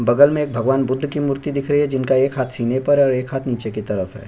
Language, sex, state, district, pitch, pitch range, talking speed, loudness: Hindi, male, Chhattisgarh, Sukma, 130 Hz, 120-140 Hz, 325 wpm, -19 LUFS